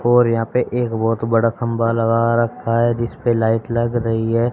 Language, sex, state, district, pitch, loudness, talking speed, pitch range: Hindi, male, Haryana, Rohtak, 115 Hz, -18 LUFS, 210 wpm, 115-120 Hz